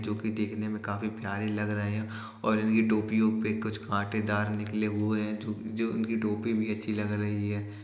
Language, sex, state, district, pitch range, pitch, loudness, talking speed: Hindi, male, Uttar Pradesh, Jalaun, 105-110 Hz, 105 Hz, -30 LUFS, 200 wpm